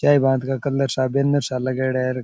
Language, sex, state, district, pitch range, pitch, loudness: Rajasthani, male, Rajasthan, Churu, 130-140 Hz, 135 Hz, -21 LUFS